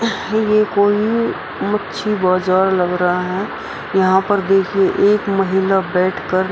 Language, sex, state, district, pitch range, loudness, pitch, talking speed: Hindi, female, Bihar, Araria, 185-205 Hz, -16 LUFS, 195 Hz, 130 wpm